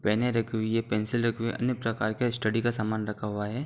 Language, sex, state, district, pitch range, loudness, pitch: Hindi, male, Uttar Pradesh, Gorakhpur, 110-120 Hz, -29 LUFS, 115 Hz